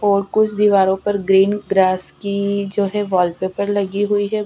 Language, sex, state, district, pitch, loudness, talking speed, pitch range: Hindi, female, Bihar, Patna, 200 Hz, -17 LUFS, 190 wpm, 195-205 Hz